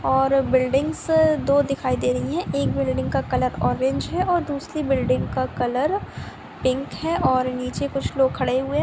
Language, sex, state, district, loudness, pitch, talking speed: Hindi, female, Bihar, Sitamarhi, -22 LUFS, 265 Hz, 185 wpm